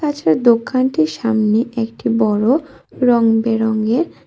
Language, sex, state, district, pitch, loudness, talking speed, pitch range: Bengali, female, Tripura, West Tripura, 230 Hz, -16 LUFS, 85 wpm, 220-245 Hz